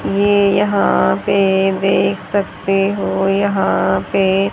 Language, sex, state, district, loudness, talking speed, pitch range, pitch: Hindi, female, Haryana, Jhajjar, -15 LUFS, 105 wpm, 190-200 Hz, 195 Hz